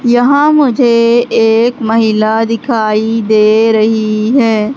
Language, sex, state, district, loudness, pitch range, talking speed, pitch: Hindi, female, Madhya Pradesh, Katni, -10 LUFS, 220-240 Hz, 100 wpm, 225 Hz